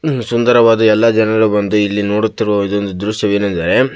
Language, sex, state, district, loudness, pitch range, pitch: Kannada, male, Karnataka, Belgaum, -13 LUFS, 100-115 Hz, 110 Hz